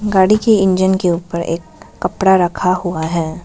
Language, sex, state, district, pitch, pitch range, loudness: Hindi, female, Arunachal Pradesh, Lower Dibang Valley, 180 Hz, 170-190 Hz, -15 LUFS